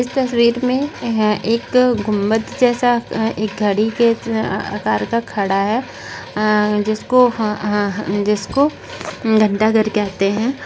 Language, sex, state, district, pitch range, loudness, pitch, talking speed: Hindi, female, Maharashtra, Solapur, 210-240 Hz, -17 LUFS, 220 Hz, 140 wpm